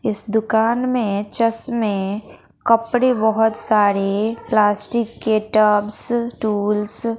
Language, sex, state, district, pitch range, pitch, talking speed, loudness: Hindi, female, Bihar, West Champaran, 210-230 Hz, 220 Hz, 100 wpm, -19 LUFS